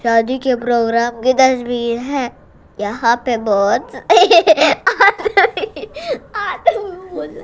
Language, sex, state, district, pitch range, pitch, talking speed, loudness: Hindi, female, Gujarat, Gandhinagar, 235-340 Hz, 255 Hz, 75 wpm, -15 LUFS